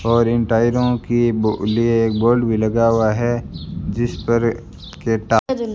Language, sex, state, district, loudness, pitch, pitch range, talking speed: Hindi, male, Rajasthan, Bikaner, -18 LUFS, 115 Hz, 110-120 Hz, 165 wpm